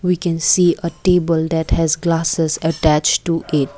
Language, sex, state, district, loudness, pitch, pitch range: English, female, Assam, Kamrup Metropolitan, -16 LUFS, 165 Hz, 160-170 Hz